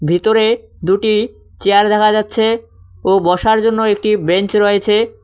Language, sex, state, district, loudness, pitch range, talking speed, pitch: Bengali, male, West Bengal, Cooch Behar, -14 LUFS, 180-220 Hz, 125 wpm, 210 Hz